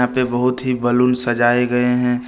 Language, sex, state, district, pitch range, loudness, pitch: Hindi, male, Jharkhand, Deoghar, 120-125 Hz, -16 LUFS, 125 Hz